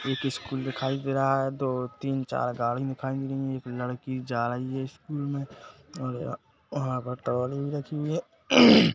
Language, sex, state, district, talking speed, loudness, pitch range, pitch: Hindi, male, Chhattisgarh, Kabirdham, 180 wpm, -28 LUFS, 125-140 Hz, 135 Hz